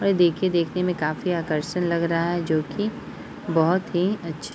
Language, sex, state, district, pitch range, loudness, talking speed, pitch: Hindi, female, Jharkhand, Jamtara, 165-180 Hz, -24 LUFS, 160 wpm, 175 Hz